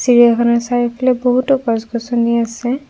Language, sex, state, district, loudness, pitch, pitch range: Assamese, female, Assam, Kamrup Metropolitan, -15 LUFS, 240 Hz, 235-250 Hz